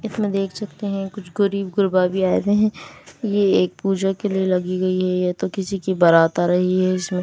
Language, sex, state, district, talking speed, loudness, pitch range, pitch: Hindi, female, Delhi, New Delhi, 240 wpm, -20 LUFS, 185-200 Hz, 190 Hz